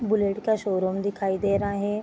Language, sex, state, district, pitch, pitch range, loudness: Hindi, female, Bihar, Vaishali, 200 Hz, 195-210 Hz, -25 LUFS